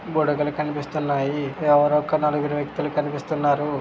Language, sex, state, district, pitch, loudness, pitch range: Telugu, male, Andhra Pradesh, Krishna, 150 Hz, -22 LUFS, 145-150 Hz